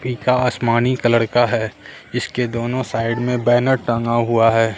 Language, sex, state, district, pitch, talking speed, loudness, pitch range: Hindi, male, Bihar, Katihar, 120 Hz, 165 wpm, -18 LUFS, 115-125 Hz